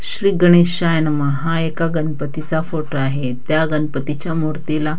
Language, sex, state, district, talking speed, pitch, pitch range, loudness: Marathi, female, Maharashtra, Dhule, 145 wpm, 155 Hz, 150-165 Hz, -18 LUFS